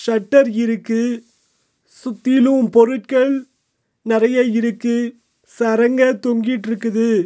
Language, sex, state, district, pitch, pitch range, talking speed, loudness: Tamil, male, Tamil Nadu, Nilgiris, 235 Hz, 230-255 Hz, 65 wpm, -17 LUFS